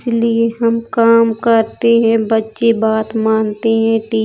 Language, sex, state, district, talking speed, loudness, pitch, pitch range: Hindi, female, Uttar Pradesh, Jalaun, 155 wpm, -14 LUFS, 225 Hz, 220-230 Hz